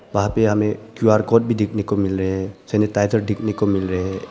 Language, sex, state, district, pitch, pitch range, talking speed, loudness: Hindi, male, Arunachal Pradesh, Papum Pare, 105 Hz, 100-110 Hz, 220 wpm, -20 LUFS